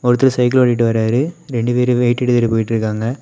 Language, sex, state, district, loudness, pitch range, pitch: Tamil, male, Tamil Nadu, Kanyakumari, -16 LUFS, 115-125 Hz, 120 Hz